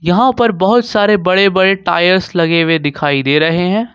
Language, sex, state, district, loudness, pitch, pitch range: Hindi, male, Jharkhand, Ranchi, -12 LUFS, 185 Hz, 165-205 Hz